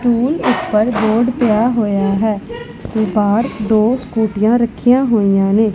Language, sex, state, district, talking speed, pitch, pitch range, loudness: Punjabi, female, Punjab, Pathankot, 135 wpm, 220 Hz, 215-235 Hz, -15 LUFS